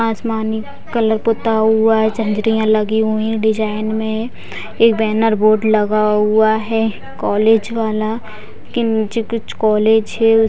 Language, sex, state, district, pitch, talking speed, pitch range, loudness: Hindi, female, Bihar, Purnia, 220 Hz, 135 wpm, 215-225 Hz, -16 LUFS